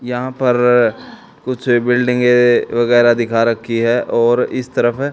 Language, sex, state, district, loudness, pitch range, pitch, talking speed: Hindi, male, Haryana, Charkhi Dadri, -14 LUFS, 120-125 Hz, 120 Hz, 130 wpm